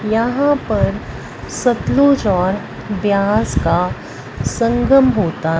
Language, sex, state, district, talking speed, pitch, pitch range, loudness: Hindi, female, Punjab, Fazilka, 85 wpm, 220 Hz, 200-255 Hz, -16 LUFS